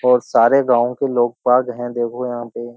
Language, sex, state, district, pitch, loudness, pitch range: Hindi, male, Uttar Pradesh, Jyotiba Phule Nagar, 120 Hz, -17 LUFS, 120-125 Hz